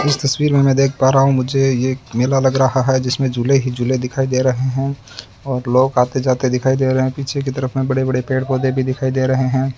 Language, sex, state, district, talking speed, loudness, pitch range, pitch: Hindi, male, Rajasthan, Bikaner, 265 wpm, -17 LUFS, 130-135 Hz, 130 Hz